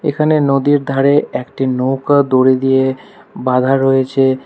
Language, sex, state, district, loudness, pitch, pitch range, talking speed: Bengali, male, West Bengal, Alipurduar, -14 LUFS, 135 Hz, 130-140 Hz, 120 wpm